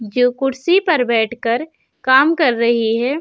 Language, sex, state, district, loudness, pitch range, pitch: Hindi, female, Uttar Pradesh, Budaun, -16 LUFS, 235-285 Hz, 250 Hz